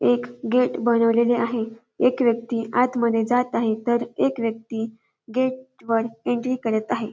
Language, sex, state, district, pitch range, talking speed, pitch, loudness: Marathi, female, Maharashtra, Dhule, 225-245 Hz, 150 wpm, 235 Hz, -23 LUFS